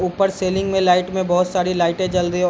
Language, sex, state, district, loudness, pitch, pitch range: Hindi, male, Bihar, Darbhanga, -19 LUFS, 180 Hz, 180-190 Hz